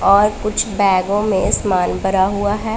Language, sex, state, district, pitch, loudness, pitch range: Hindi, female, Punjab, Pathankot, 205 Hz, -16 LUFS, 190-210 Hz